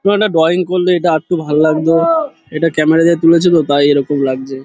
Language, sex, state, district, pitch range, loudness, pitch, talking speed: Bengali, male, West Bengal, Dakshin Dinajpur, 150-175 Hz, -12 LUFS, 165 Hz, 180 wpm